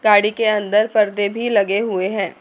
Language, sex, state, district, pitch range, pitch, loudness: Hindi, female, Chandigarh, Chandigarh, 200-215 Hz, 210 Hz, -17 LUFS